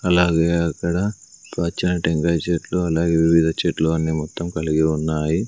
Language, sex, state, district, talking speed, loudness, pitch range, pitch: Telugu, male, Andhra Pradesh, Sri Satya Sai, 130 wpm, -20 LUFS, 80-85 Hz, 85 Hz